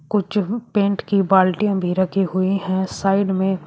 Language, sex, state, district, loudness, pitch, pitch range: Hindi, female, Uttar Pradesh, Shamli, -19 LUFS, 195 Hz, 185-200 Hz